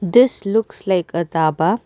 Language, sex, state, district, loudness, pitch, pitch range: English, female, Karnataka, Bangalore, -18 LUFS, 185 Hz, 165-220 Hz